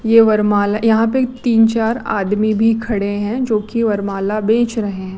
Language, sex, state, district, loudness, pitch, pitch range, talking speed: Hindi, female, Chhattisgarh, Raipur, -16 LUFS, 220 Hz, 205-230 Hz, 185 wpm